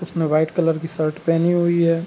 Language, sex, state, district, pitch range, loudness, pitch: Hindi, male, Bihar, Gopalganj, 160-170 Hz, -19 LUFS, 165 Hz